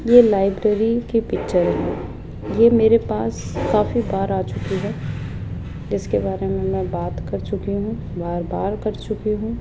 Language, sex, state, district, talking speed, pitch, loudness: Hindi, female, Rajasthan, Jaipur, 160 wpm, 195 Hz, -21 LUFS